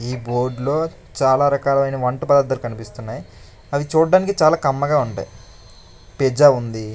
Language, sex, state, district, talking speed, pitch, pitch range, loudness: Telugu, male, Andhra Pradesh, Chittoor, 120 wpm, 130 Hz, 110-145 Hz, -18 LUFS